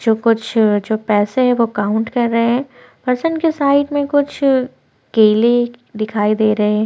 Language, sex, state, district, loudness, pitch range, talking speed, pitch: Hindi, female, Chhattisgarh, Korba, -16 LUFS, 215-260 Hz, 175 wpm, 230 Hz